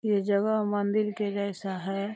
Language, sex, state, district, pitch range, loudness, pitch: Hindi, female, Uttar Pradesh, Deoria, 200-210 Hz, -28 LUFS, 205 Hz